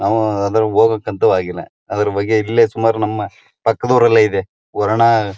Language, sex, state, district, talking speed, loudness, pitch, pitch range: Kannada, male, Karnataka, Mysore, 135 wpm, -15 LUFS, 110 Hz, 105-115 Hz